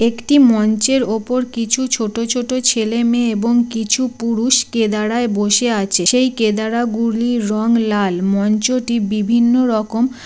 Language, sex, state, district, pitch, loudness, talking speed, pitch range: Bengali, female, West Bengal, Jalpaiguri, 230 Hz, -16 LUFS, 135 wpm, 220-245 Hz